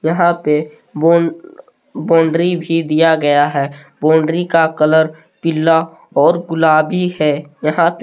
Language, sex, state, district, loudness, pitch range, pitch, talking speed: Hindi, male, Jharkhand, Palamu, -14 LUFS, 155-170 Hz, 160 Hz, 125 wpm